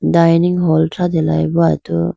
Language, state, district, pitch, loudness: Idu Mishmi, Arunachal Pradesh, Lower Dibang Valley, 160 Hz, -14 LUFS